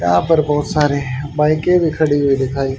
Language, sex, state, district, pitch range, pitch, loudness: Hindi, male, Haryana, Charkhi Dadri, 135-155 Hz, 145 Hz, -16 LUFS